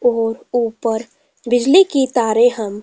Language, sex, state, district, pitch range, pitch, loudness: Hindi, female, Himachal Pradesh, Shimla, 225-245 Hz, 240 Hz, -16 LUFS